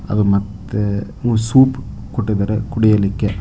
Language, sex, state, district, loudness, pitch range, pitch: Kannada, male, Karnataka, Dharwad, -17 LUFS, 100-115 Hz, 105 Hz